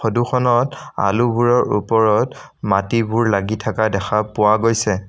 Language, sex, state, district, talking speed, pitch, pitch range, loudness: Assamese, male, Assam, Sonitpur, 120 wpm, 110 Hz, 105-120 Hz, -17 LUFS